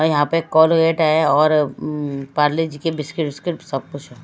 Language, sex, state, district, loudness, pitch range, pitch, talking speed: Hindi, female, Odisha, Malkangiri, -18 LUFS, 145-160 Hz, 155 Hz, 200 wpm